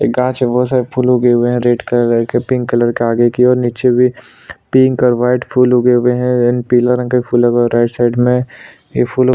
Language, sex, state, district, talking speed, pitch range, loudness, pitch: Hindi, male, Chhattisgarh, Sukma, 220 wpm, 120-125 Hz, -13 LUFS, 125 Hz